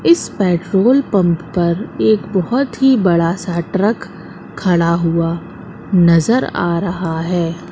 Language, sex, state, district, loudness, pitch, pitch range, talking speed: Hindi, female, Madhya Pradesh, Katni, -15 LUFS, 180 Hz, 170-205 Hz, 115 wpm